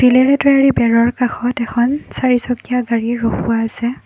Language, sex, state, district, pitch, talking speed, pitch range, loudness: Assamese, female, Assam, Kamrup Metropolitan, 245 Hz, 105 wpm, 235-255 Hz, -15 LUFS